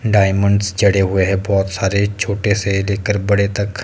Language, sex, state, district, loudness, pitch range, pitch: Hindi, male, Himachal Pradesh, Shimla, -16 LUFS, 95-100 Hz, 100 Hz